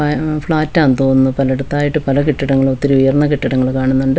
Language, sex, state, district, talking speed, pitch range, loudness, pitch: Malayalam, female, Kerala, Wayanad, 185 wpm, 135-150 Hz, -14 LUFS, 135 Hz